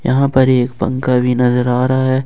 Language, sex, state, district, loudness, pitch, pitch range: Hindi, male, Jharkhand, Ranchi, -14 LUFS, 130 Hz, 125-130 Hz